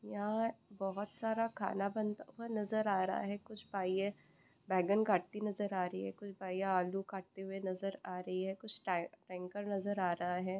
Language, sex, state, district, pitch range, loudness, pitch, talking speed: Hindi, female, West Bengal, Purulia, 185-205 Hz, -39 LUFS, 195 Hz, 200 wpm